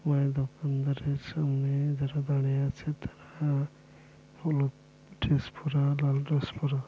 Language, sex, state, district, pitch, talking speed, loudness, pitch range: Bengali, male, West Bengal, Dakshin Dinajpur, 140 Hz, 115 wpm, -30 LUFS, 140-145 Hz